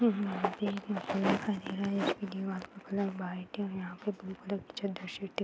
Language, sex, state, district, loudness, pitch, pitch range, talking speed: Hindi, female, Uttar Pradesh, Hamirpur, -35 LUFS, 200 Hz, 190-205 Hz, 220 wpm